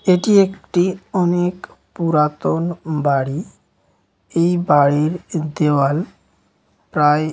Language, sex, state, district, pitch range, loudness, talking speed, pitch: Bengali, male, West Bengal, Dakshin Dinajpur, 150-180 Hz, -18 LUFS, 75 wpm, 165 Hz